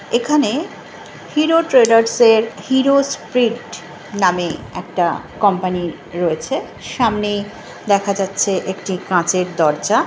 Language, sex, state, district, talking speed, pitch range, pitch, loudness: Bengali, female, West Bengal, Jhargram, 95 wpm, 180-240 Hz, 205 Hz, -17 LUFS